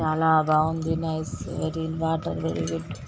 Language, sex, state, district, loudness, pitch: Telugu, female, Telangana, Nalgonda, -25 LUFS, 155 Hz